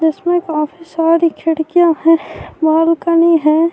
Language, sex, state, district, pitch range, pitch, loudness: Urdu, female, Bihar, Saharsa, 320-335 Hz, 330 Hz, -14 LUFS